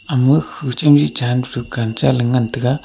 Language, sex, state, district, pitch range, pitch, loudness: Wancho, male, Arunachal Pradesh, Longding, 120-140 Hz, 125 Hz, -16 LUFS